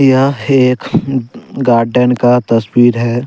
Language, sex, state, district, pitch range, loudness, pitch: Hindi, male, Jharkhand, Deoghar, 120-130 Hz, -12 LUFS, 125 Hz